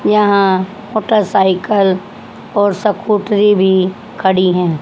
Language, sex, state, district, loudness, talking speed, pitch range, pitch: Hindi, female, Haryana, Jhajjar, -13 LUFS, 85 wpm, 185-210 Hz, 200 Hz